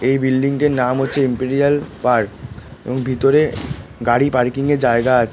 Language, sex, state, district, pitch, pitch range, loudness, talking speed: Bengali, male, West Bengal, Kolkata, 130 Hz, 125-140 Hz, -17 LUFS, 160 wpm